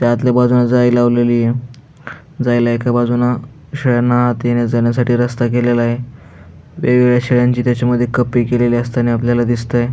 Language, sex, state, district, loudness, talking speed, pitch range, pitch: Marathi, male, Maharashtra, Aurangabad, -14 LUFS, 125 wpm, 120-125 Hz, 120 Hz